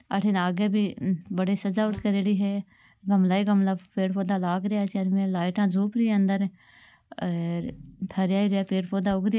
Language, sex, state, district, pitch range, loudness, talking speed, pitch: Marwari, female, Rajasthan, Nagaur, 190-200 Hz, -26 LUFS, 180 wpm, 195 Hz